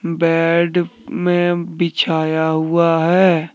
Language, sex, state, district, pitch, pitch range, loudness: Hindi, male, Jharkhand, Deoghar, 170 Hz, 165-175 Hz, -16 LUFS